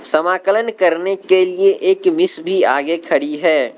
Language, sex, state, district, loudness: Hindi, male, Arunachal Pradesh, Lower Dibang Valley, -15 LUFS